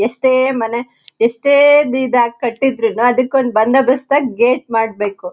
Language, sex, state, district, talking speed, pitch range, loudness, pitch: Kannada, female, Karnataka, Shimoga, 135 wpm, 230-265 Hz, -14 LUFS, 245 Hz